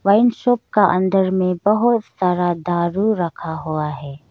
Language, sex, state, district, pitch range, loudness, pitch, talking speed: Hindi, female, Arunachal Pradesh, Lower Dibang Valley, 170-210 Hz, -18 LUFS, 185 Hz, 155 wpm